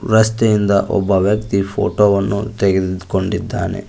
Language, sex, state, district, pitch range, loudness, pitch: Kannada, male, Karnataka, Koppal, 100-105 Hz, -16 LUFS, 100 Hz